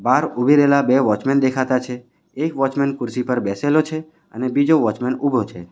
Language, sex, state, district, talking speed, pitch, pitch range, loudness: Gujarati, male, Gujarat, Valsad, 190 wpm, 135 Hz, 125-145 Hz, -18 LUFS